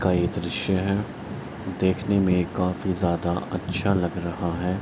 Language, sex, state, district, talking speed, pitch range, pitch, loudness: Hindi, male, Bihar, Araria, 135 wpm, 85-95 Hz, 90 Hz, -25 LUFS